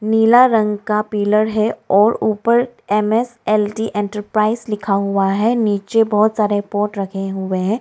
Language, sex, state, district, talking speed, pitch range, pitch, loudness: Hindi, female, Arunachal Pradesh, Lower Dibang Valley, 170 wpm, 205-220 Hz, 210 Hz, -17 LUFS